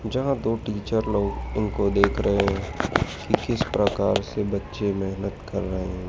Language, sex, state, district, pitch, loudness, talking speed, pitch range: Hindi, male, Madhya Pradesh, Dhar, 100 Hz, -25 LUFS, 165 wpm, 95-105 Hz